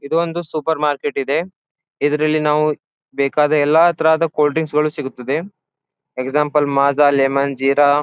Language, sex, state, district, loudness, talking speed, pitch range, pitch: Kannada, male, Karnataka, Bijapur, -17 LUFS, 135 wpm, 140-160 Hz, 150 Hz